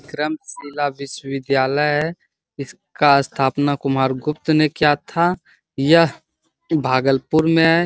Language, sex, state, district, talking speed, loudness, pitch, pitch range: Hindi, male, Bihar, Bhagalpur, 115 wpm, -18 LUFS, 145 Hz, 140-155 Hz